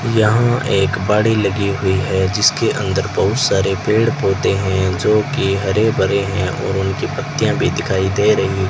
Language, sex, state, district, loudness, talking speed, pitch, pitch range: Hindi, male, Rajasthan, Bikaner, -16 LUFS, 180 wpm, 100 Hz, 95-105 Hz